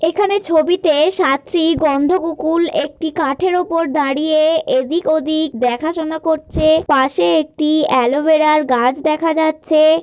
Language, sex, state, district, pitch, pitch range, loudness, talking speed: Bengali, female, West Bengal, Kolkata, 315 Hz, 300-325 Hz, -15 LUFS, 130 wpm